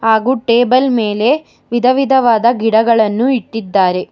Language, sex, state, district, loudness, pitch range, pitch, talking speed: Kannada, female, Karnataka, Bangalore, -13 LUFS, 220-255 Hz, 230 Hz, 85 wpm